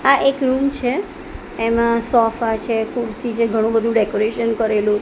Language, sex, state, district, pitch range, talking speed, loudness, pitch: Gujarati, female, Gujarat, Gandhinagar, 225-250 Hz, 155 wpm, -18 LUFS, 230 Hz